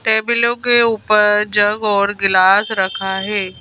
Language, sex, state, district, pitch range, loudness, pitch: Hindi, female, Madhya Pradesh, Bhopal, 195-220 Hz, -14 LUFS, 210 Hz